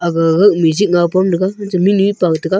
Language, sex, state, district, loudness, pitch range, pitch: Wancho, male, Arunachal Pradesh, Longding, -13 LUFS, 170-195 Hz, 185 Hz